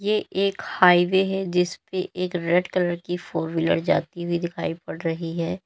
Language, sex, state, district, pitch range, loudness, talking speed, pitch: Hindi, female, Uttar Pradesh, Lalitpur, 170-190 Hz, -23 LUFS, 190 wpm, 175 Hz